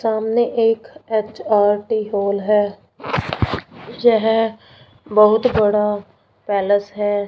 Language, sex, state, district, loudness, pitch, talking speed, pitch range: Hindi, female, Punjab, Fazilka, -18 LUFS, 215 Hz, 80 wpm, 205-225 Hz